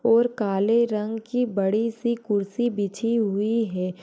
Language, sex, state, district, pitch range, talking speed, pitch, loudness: Hindi, female, Uttar Pradesh, Deoria, 200-235 Hz, 150 wpm, 225 Hz, -24 LUFS